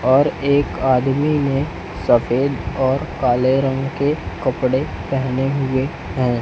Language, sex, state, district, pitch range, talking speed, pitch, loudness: Hindi, male, Chhattisgarh, Raipur, 125-140 Hz, 120 wpm, 135 Hz, -19 LUFS